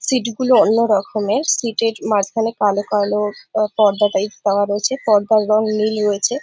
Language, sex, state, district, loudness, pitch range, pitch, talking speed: Bengali, female, West Bengal, Jhargram, -17 LUFS, 205-225 Hz, 215 Hz, 150 wpm